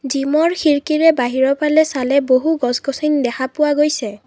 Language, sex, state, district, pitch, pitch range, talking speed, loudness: Assamese, female, Assam, Kamrup Metropolitan, 280 Hz, 260-305 Hz, 155 wpm, -16 LUFS